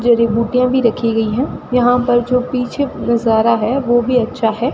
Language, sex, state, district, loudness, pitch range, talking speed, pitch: Hindi, female, Rajasthan, Bikaner, -15 LUFS, 230-250 Hz, 205 wpm, 240 Hz